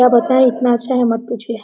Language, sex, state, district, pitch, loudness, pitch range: Hindi, female, Jharkhand, Sahebganj, 240 Hz, -15 LUFS, 235-250 Hz